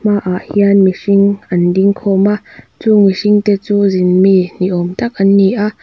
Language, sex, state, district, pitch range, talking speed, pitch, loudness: Mizo, female, Mizoram, Aizawl, 185-205 Hz, 185 wpm, 200 Hz, -12 LUFS